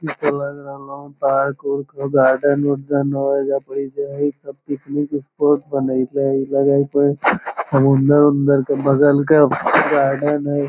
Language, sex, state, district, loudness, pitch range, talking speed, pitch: Magahi, male, Bihar, Lakhisarai, -17 LUFS, 140-145 Hz, 170 wpm, 140 Hz